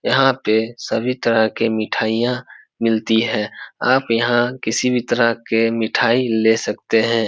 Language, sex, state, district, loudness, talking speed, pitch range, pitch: Hindi, male, Bihar, Supaul, -18 LUFS, 150 wpm, 110-125 Hz, 115 Hz